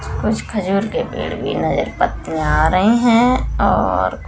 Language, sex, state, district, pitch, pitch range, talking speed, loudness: Hindi, female, Bihar, Gaya, 230 Hz, 200-240 Hz, 155 wpm, -17 LUFS